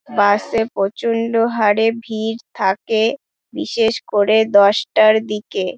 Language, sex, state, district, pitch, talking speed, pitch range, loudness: Bengali, female, West Bengal, Dakshin Dinajpur, 220 Hz, 105 wpm, 205-230 Hz, -17 LUFS